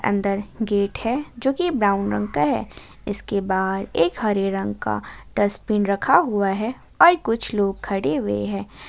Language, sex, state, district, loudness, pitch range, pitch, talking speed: Hindi, female, Jharkhand, Ranchi, -22 LUFS, 190-225 Hz, 200 Hz, 170 wpm